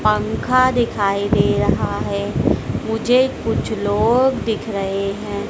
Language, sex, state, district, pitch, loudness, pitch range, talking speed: Hindi, female, Madhya Pradesh, Dhar, 220 Hz, -18 LUFS, 205-245 Hz, 120 wpm